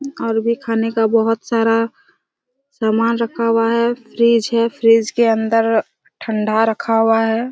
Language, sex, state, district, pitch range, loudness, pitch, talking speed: Hindi, female, Chhattisgarh, Raigarh, 225-235 Hz, -16 LUFS, 230 Hz, 150 wpm